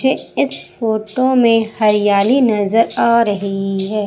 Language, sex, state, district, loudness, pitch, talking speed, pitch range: Hindi, female, Madhya Pradesh, Umaria, -15 LUFS, 220 Hz, 130 wpm, 205-235 Hz